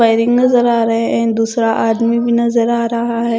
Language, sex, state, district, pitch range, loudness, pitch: Hindi, female, Punjab, Kapurthala, 230-235 Hz, -14 LUFS, 230 Hz